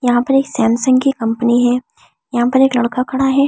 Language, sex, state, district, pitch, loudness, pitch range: Hindi, female, Delhi, New Delhi, 250 Hz, -15 LUFS, 240-265 Hz